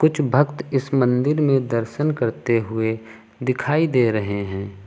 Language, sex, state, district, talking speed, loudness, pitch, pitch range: Hindi, male, Uttar Pradesh, Lucknow, 145 wpm, -21 LUFS, 125 Hz, 110-145 Hz